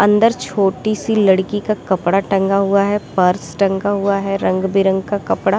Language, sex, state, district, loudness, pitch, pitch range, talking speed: Hindi, female, Bihar, Saran, -16 LUFS, 195 Hz, 190-205 Hz, 180 wpm